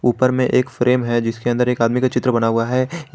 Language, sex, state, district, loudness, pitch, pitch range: Hindi, male, Jharkhand, Garhwa, -18 LUFS, 125 Hz, 120-130 Hz